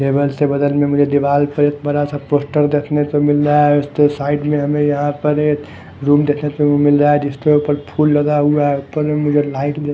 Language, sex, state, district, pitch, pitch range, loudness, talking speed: Hindi, male, Punjab, Fazilka, 145 Hz, 145-150 Hz, -15 LUFS, 230 wpm